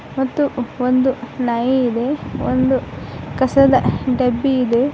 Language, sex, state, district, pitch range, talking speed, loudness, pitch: Kannada, female, Karnataka, Bidar, 250-265 Hz, 95 wpm, -18 LUFS, 255 Hz